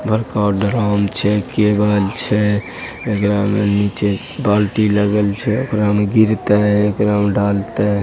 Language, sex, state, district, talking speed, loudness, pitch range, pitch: Angika, male, Bihar, Begusarai, 125 wpm, -16 LUFS, 100-105 Hz, 105 Hz